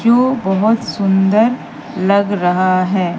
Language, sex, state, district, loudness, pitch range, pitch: Hindi, female, Madhya Pradesh, Katni, -14 LUFS, 185-225 Hz, 200 Hz